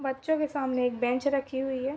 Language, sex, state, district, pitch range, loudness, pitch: Hindi, female, Uttar Pradesh, Ghazipur, 255-280 Hz, -29 LUFS, 265 Hz